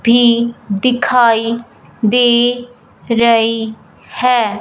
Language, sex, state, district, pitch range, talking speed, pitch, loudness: Hindi, male, Punjab, Fazilka, 230-245 Hz, 65 wpm, 235 Hz, -13 LUFS